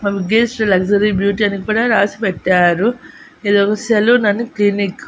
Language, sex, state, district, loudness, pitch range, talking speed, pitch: Telugu, female, Andhra Pradesh, Annamaya, -15 LUFS, 200-225 Hz, 165 wpm, 205 Hz